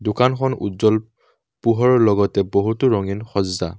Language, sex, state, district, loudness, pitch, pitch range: Assamese, male, Assam, Kamrup Metropolitan, -19 LUFS, 110 Hz, 100-120 Hz